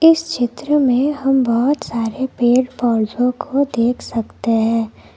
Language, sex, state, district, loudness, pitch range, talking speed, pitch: Hindi, female, Karnataka, Bangalore, -17 LUFS, 230-270 Hz, 140 wpm, 245 Hz